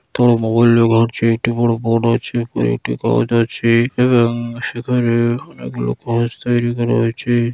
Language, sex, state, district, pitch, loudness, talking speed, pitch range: Bengali, male, West Bengal, Dakshin Dinajpur, 115 Hz, -16 LUFS, 125 wpm, 115-120 Hz